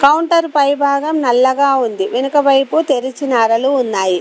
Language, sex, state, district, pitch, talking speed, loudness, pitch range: Telugu, female, Telangana, Komaram Bheem, 275 Hz, 140 wpm, -14 LUFS, 245-285 Hz